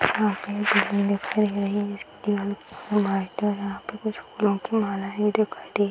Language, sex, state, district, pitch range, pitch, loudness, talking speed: Hindi, female, Bihar, Saran, 200-210 Hz, 205 Hz, -25 LUFS, 160 wpm